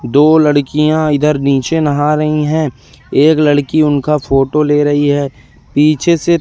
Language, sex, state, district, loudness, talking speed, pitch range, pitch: Hindi, male, Madhya Pradesh, Katni, -12 LUFS, 150 wpm, 145-155 Hz, 150 Hz